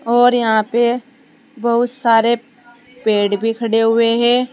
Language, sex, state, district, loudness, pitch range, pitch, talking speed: Hindi, female, Uttar Pradesh, Saharanpur, -16 LUFS, 225-245 Hz, 235 Hz, 130 wpm